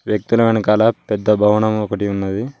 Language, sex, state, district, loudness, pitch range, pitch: Telugu, male, Telangana, Mahabubabad, -16 LUFS, 105-110 Hz, 105 Hz